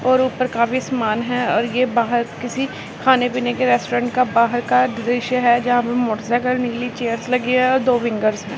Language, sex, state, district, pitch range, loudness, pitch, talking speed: Hindi, female, Punjab, Pathankot, 235-250 Hz, -19 LUFS, 245 Hz, 190 wpm